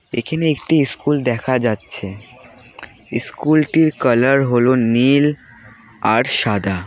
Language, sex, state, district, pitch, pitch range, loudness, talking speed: Bengali, male, West Bengal, Alipurduar, 125 Hz, 115-145 Hz, -17 LUFS, 95 wpm